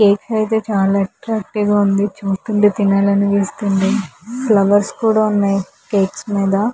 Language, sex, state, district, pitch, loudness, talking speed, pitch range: Telugu, female, Andhra Pradesh, Visakhapatnam, 205 Hz, -16 LUFS, 135 wpm, 195-215 Hz